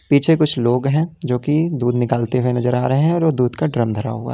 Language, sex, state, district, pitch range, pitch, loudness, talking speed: Hindi, male, Uttar Pradesh, Lalitpur, 120-155 Hz, 125 Hz, -18 LUFS, 290 wpm